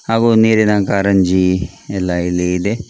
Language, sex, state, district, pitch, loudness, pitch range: Kannada, male, Karnataka, Dakshina Kannada, 100 Hz, -15 LUFS, 90-110 Hz